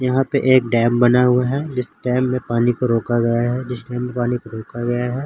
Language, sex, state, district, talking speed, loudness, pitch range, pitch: Hindi, male, Jharkhand, Jamtara, 260 wpm, -18 LUFS, 120-125 Hz, 125 Hz